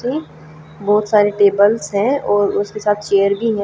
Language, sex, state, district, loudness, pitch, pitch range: Hindi, female, Haryana, Jhajjar, -16 LUFS, 205 Hz, 200-215 Hz